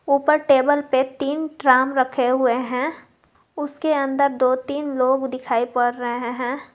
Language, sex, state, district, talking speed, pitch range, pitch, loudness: Hindi, female, Jharkhand, Garhwa, 150 wpm, 255-285 Hz, 265 Hz, -20 LUFS